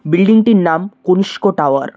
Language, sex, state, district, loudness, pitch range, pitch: Bengali, male, West Bengal, Cooch Behar, -13 LUFS, 165-205 Hz, 185 Hz